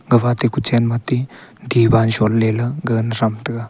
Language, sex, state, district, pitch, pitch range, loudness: Wancho, male, Arunachal Pradesh, Longding, 115 Hz, 115-120 Hz, -17 LUFS